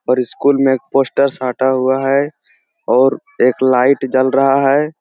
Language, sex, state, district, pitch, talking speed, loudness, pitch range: Hindi, male, Bihar, Jamui, 135 Hz, 170 wpm, -14 LUFS, 130-140 Hz